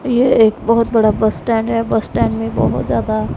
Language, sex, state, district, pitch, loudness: Hindi, female, Punjab, Pathankot, 220 Hz, -15 LUFS